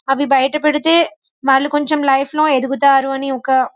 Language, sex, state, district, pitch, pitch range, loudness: Telugu, female, Telangana, Karimnagar, 275 Hz, 270-300 Hz, -15 LUFS